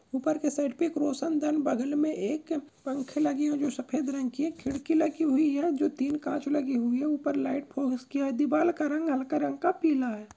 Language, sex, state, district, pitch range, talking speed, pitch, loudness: Hindi, male, Uttar Pradesh, Jyotiba Phule Nagar, 275-305 Hz, 225 wpm, 295 Hz, -29 LUFS